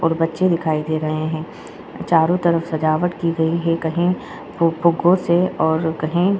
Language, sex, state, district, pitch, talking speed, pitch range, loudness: Hindi, female, Uttar Pradesh, Jyotiba Phule Nagar, 165 Hz, 160 wpm, 160-175 Hz, -19 LUFS